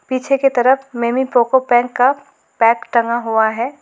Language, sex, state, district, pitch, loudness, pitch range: Hindi, female, West Bengal, Alipurduar, 245 Hz, -15 LUFS, 235-265 Hz